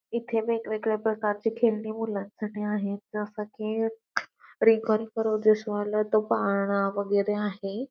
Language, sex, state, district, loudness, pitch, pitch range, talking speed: Marathi, female, Maharashtra, Pune, -27 LUFS, 215 Hz, 205-225 Hz, 120 wpm